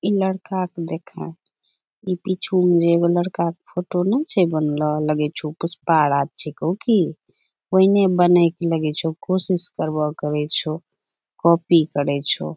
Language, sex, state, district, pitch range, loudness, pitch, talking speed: Angika, female, Bihar, Bhagalpur, 155-185 Hz, -20 LUFS, 170 Hz, 150 wpm